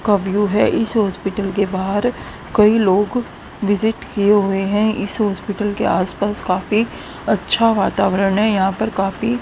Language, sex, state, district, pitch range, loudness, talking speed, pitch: Hindi, female, Haryana, Rohtak, 195-215 Hz, -18 LUFS, 155 wpm, 205 Hz